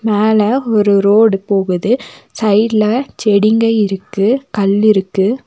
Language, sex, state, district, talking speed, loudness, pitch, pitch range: Tamil, female, Tamil Nadu, Nilgiris, 90 wpm, -13 LUFS, 210 Hz, 200-225 Hz